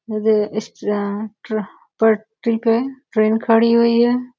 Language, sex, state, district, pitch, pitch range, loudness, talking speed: Hindi, female, Uttar Pradesh, Gorakhpur, 225 Hz, 215-235 Hz, -18 LUFS, 110 wpm